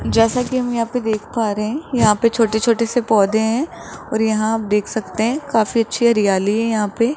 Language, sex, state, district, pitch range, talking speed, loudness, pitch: Hindi, male, Rajasthan, Jaipur, 215-235 Hz, 235 wpm, -18 LUFS, 225 Hz